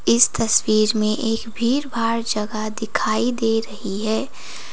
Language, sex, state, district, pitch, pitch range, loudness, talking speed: Hindi, female, Sikkim, Gangtok, 225 Hz, 215-230 Hz, -20 LUFS, 140 wpm